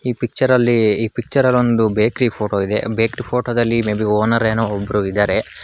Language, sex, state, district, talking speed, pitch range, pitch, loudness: Kannada, male, Karnataka, Bangalore, 170 wpm, 105-120 Hz, 115 Hz, -17 LUFS